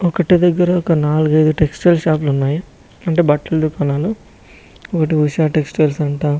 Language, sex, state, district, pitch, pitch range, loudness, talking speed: Telugu, male, Telangana, Nalgonda, 155 Hz, 150-175 Hz, -16 LUFS, 120 wpm